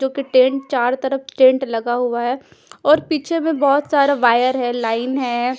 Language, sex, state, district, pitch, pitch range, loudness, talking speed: Hindi, female, Punjab, Fazilka, 260 Hz, 245-275 Hz, -17 LUFS, 185 wpm